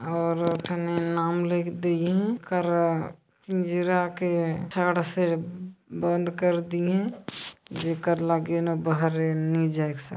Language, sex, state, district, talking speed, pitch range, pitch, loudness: Hindi, female, Chhattisgarh, Jashpur, 120 wpm, 165-180 Hz, 170 Hz, -26 LUFS